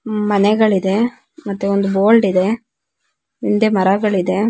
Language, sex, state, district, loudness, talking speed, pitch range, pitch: Kannada, female, Karnataka, Dakshina Kannada, -16 LUFS, 120 wpm, 195-220 Hz, 205 Hz